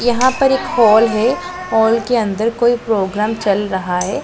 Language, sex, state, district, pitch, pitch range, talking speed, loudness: Hindi, female, Punjab, Pathankot, 225 Hz, 210-245 Hz, 185 wpm, -15 LUFS